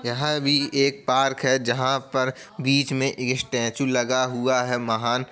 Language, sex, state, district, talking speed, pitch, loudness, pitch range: Hindi, male, Uttar Pradesh, Jalaun, 180 wpm, 130 Hz, -23 LUFS, 125-135 Hz